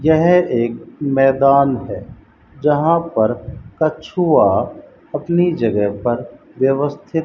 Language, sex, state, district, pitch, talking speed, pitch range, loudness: Hindi, male, Rajasthan, Bikaner, 140 Hz, 100 wpm, 120-160 Hz, -16 LUFS